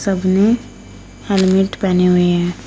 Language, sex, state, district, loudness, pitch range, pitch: Hindi, female, Uttar Pradesh, Shamli, -15 LUFS, 180-195 Hz, 190 Hz